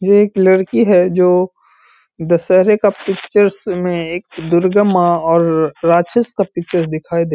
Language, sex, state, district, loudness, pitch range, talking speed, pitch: Hindi, male, Bihar, Gaya, -14 LUFS, 170-200 Hz, 155 wpm, 180 Hz